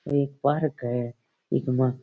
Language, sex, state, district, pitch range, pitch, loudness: Rajasthani, male, Rajasthan, Churu, 125-145 Hz, 130 Hz, -27 LUFS